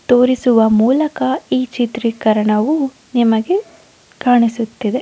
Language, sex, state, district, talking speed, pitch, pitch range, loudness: Kannada, female, Karnataka, Dharwad, 85 wpm, 245 Hz, 225-260 Hz, -15 LUFS